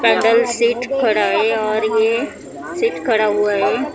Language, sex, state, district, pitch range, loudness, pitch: Marathi, female, Maharashtra, Mumbai Suburban, 215-240 Hz, -17 LUFS, 225 Hz